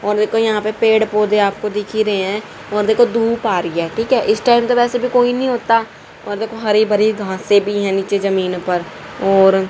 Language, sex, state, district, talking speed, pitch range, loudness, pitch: Hindi, female, Haryana, Rohtak, 235 wpm, 200-225 Hz, -16 LUFS, 210 Hz